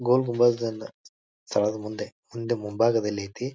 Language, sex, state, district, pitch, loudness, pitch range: Kannada, male, Karnataka, Bijapur, 115 Hz, -26 LUFS, 105-120 Hz